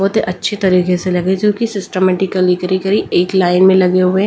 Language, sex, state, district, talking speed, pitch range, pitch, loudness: Hindi, female, Delhi, New Delhi, 225 wpm, 180-195 Hz, 185 Hz, -14 LUFS